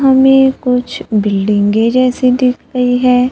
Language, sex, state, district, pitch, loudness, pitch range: Hindi, female, Maharashtra, Gondia, 250 Hz, -12 LUFS, 225-255 Hz